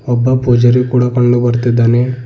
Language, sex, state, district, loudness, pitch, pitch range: Kannada, male, Karnataka, Bidar, -12 LUFS, 120 Hz, 120-125 Hz